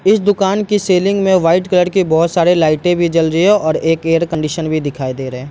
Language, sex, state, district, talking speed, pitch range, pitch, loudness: Hindi, male, Bihar, East Champaran, 260 wpm, 160-190 Hz, 170 Hz, -14 LUFS